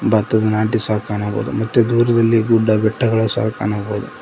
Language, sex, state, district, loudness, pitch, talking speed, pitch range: Kannada, male, Karnataka, Koppal, -17 LUFS, 110 Hz, 140 wpm, 105-115 Hz